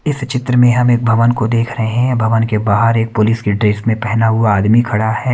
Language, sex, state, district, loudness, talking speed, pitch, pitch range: Hindi, male, Haryana, Rohtak, -14 LUFS, 260 wpm, 115 Hz, 110-120 Hz